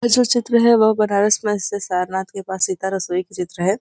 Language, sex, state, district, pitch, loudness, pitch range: Hindi, female, Uttar Pradesh, Varanasi, 200 Hz, -18 LUFS, 190-220 Hz